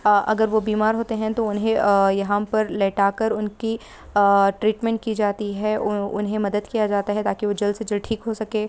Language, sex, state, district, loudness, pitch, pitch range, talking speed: Hindi, female, Andhra Pradesh, Visakhapatnam, -22 LUFS, 210 Hz, 205-220 Hz, 200 wpm